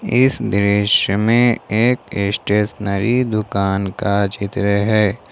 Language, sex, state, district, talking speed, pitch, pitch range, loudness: Hindi, male, Jharkhand, Ranchi, 100 wpm, 105 Hz, 100-115 Hz, -17 LUFS